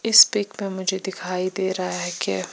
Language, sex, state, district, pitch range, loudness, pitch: Hindi, female, Chandigarh, Chandigarh, 180-195 Hz, -22 LUFS, 190 Hz